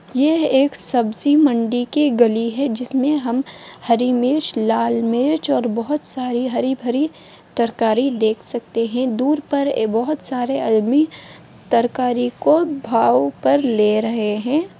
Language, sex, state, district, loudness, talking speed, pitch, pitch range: Hindi, female, Bihar, Madhepura, -18 LUFS, 140 wpm, 250 Hz, 230-280 Hz